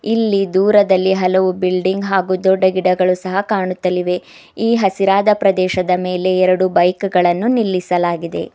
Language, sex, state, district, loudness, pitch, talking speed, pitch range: Kannada, female, Karnataka, Bidar, -15 LUFS, 185 Hz, 120 wpm, 185-195 Hz